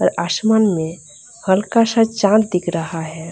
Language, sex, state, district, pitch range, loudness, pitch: Hindi, female, Bihar, Darbhanga, 165-220 Hz, -17 LUFS, 185 Hz